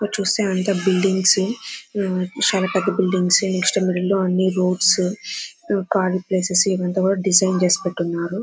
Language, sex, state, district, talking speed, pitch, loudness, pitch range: Telugu, female, Andhra Pradesh, Anantapur, 135 wpm, 190 Hz, -19 LUFS, 185-195 Hz